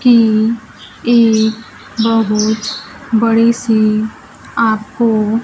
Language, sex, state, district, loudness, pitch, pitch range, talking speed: Hindi, female, Bihar, Kaimur, -14 LUFS, 225 Hz, 220-230 Hz, 65 wpm